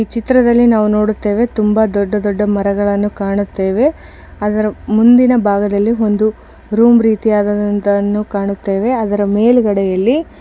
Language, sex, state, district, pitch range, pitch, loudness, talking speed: Kannada, female, Karnataka, Bijapur, 205-230 Hz, 210 Hz, -13 LUFS, 105 wpm